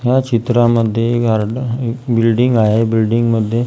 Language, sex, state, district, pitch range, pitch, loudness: Marathi, female, Maharashtra, Gondia, 115-120 Hz, 115 Hz, -15 LUFS